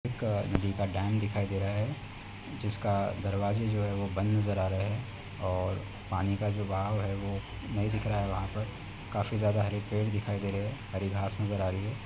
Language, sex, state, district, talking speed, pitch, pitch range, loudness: Hindi, male, Uttar Pradesh, Deoria, 225 wpm, 100 Hz, 100-105 Hz, -32 LUFS